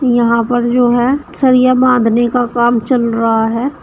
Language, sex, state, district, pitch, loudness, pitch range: Hindi, female, Uttar Pradesh, Shamli, 245 Hz, -12 LUFS, 235-255 Hz